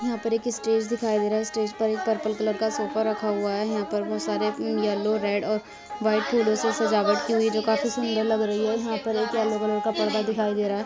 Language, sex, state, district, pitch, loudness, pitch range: Hindi, female, Bihar, Vaishali, 215 Hz, -25 LUFS, 210-220 Hz